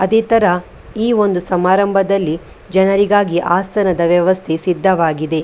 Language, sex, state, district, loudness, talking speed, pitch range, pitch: Kannada, female, Karnataka, Dakshina Kannada, -15 LUFS, 110 wpm, 175-200 Hz, 190 Hz